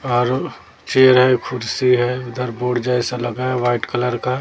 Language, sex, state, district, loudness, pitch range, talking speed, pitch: Hindi, female, Chhattisgarh, Raipur, -18 LUFS, 120-125 Hz, 175 wpm, 125 Hz